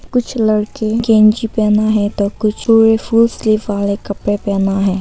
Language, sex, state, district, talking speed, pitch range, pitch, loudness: Hindi, female, Arunachal Pradesh, Papum Pare, 165 wpm, 205-225 Hz, 215 Hz, -14 LUFS